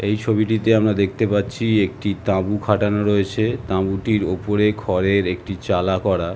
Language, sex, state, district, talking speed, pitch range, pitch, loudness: Bengali, male, West Bengal, Jhargram, 160 wpm, 95-110 Hz, 105 Hz, -20 LUFS